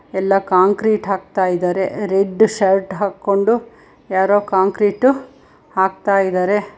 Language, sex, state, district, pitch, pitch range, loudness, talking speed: Kannada, female, Karnataka, Bangalore, 195 Hz, 190-205 Hz, -17 LUFS, 95 wpm